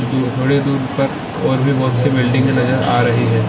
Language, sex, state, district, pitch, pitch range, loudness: Hindi, male, Chhattisgarh, Balrampur, 130 Hz, 125-135 Hz, -16 LUFS